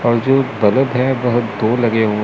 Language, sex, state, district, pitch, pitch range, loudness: Hindi, male, Chandigarh, Chandigarh, 120 Hz, 110-130 Hz, -16 LUFS